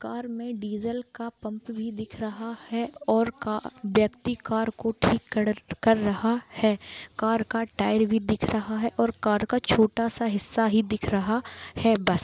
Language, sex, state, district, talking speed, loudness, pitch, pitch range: Hindi, male, Jharkhand, Jamtara, 180 wpm, -26 LUFS, 225 Hz, 215-230 Hz